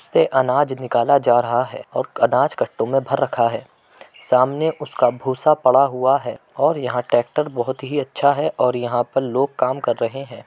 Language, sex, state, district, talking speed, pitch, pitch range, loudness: Hindi, male, Uttar Pradesh, Muzaffarnagar, 195 wpm, 130 Hz, 120-140 Hz, -19 LUFS